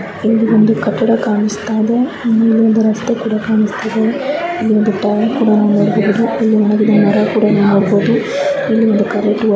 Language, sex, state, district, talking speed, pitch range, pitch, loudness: Kannada, female, Karnataka, Bijapur, 150 wpm, 210-225 Hz, 220 Hz, -13 LUFS